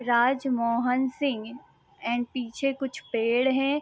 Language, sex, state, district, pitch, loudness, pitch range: Hindi, female, Bihar, East Champaran, 250 Hz, -27 LUFS, 235-270 Hz